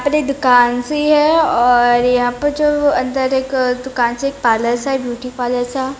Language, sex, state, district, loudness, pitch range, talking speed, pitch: Hindi, female, Bihar, Begusarai, -15 LUFS, 245-280 Hz, 200 wpm, 255 Hz